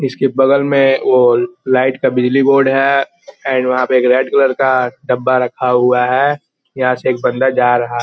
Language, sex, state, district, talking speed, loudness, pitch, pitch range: Hindi, male, Bihar, Gopalganj, 195 wpm, -13 LUFS, 130 Hz, 125-135 Hz